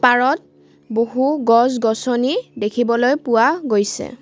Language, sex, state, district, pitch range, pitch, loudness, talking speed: Assamese, female, Assam, Kamrup Metropolitan, 225-260 Hz, 240 Hz, -17 LUFS, 85 wpm